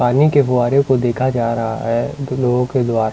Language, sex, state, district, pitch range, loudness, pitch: Hindi, male, Delhi, New Delhi, 115-130 Hz, -17 LUFS, 125 Hz